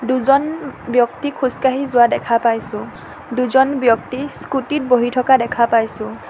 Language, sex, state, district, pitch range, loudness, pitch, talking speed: Assamese, female, Assam, Sonitpur, 235-270 Hz, -17 LUFS, 255 Hz, 135 wpm